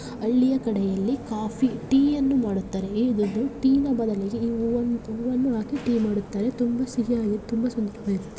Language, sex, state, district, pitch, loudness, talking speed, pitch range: Kannada, female, Karnataka, Chamarajanagar, 230 Hz, -25 LUFS, 130 wpm, 215-250 Hz